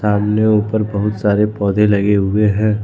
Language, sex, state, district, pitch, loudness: Hindi, male, Jharkhand, Ranchi, 105 Hz, -15 LUFS